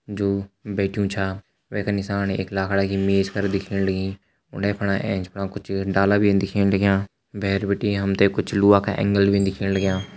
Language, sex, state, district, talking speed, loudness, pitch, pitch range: Hindi, male, Uttarakhand, Uttarkashi, 190 wpm, -22 LUFS, 100 Hz, 95-100 Hz